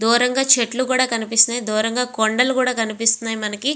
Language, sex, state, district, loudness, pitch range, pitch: Telugu, female, Andhra Pradesh, Visakhapatnam, -17 LUFS, 225-250 Hz, 235 Hz